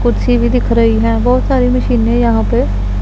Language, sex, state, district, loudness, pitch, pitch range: Hindi, female, Punjab, Pathankot, -13 LUFS, 235 Hz, 225-250 Hz